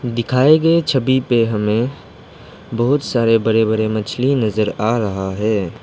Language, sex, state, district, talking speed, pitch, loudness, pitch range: Hindi, male, Arunachal Pradesh, Lower Dibang Valley, 145 wpm, 115 Hz, -17 LUFS, 110-130 Hz